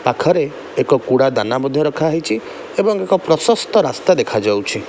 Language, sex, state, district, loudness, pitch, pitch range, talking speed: Odia, male, Odisha, Khordha, -16 LUFS, 155 Hz, 130-210 Hz, 135 wpm